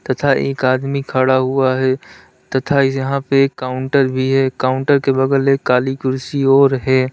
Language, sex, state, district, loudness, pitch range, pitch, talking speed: Hindi, male, Uttar Pradesh, Lalitpur, -16 LUFS, 130-135 Hz, 135 Hz, 175 wpm